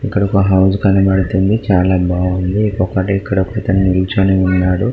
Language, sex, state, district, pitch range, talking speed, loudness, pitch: Telugu, male, Telangana, Karimnagar, 95-100 Hz, 145 wpm, -14 LUFS, 95 Hz